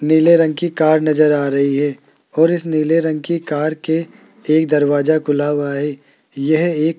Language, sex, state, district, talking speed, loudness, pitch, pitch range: Hindi, male, Rajasthan, Jaipur, 195 wpm, -16 LUFS, 155 Hz, 145-160 Hz